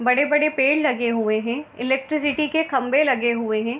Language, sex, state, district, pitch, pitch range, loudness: Hindi, female, Bihar, Gopalganj, 265 Hz, 235-295 Hz, -21 LUFS